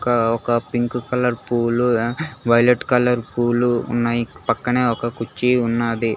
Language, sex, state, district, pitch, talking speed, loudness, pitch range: Telugu, male, Telangana, Hyderabad, 120 Hz, 135 wpm, -19 LUFS, 115-125 Hz